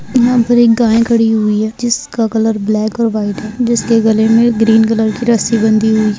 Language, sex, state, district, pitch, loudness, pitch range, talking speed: Hindi, female, Rajasthan, Churu, 225 Hz, -12 LUFS, 220-235 Hz, 225 wpm